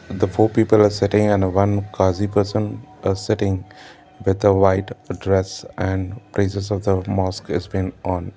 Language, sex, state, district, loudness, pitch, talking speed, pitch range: English, male, Karnataka, Bangalore, -20 LUFS, 100 Hz, 170 wpm, 95-105 Hz